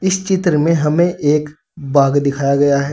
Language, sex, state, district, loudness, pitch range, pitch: Hindi, male, Uttar Pradesh, Saharanpur, -15 LUFS, 140-170 Hz, 150 Hz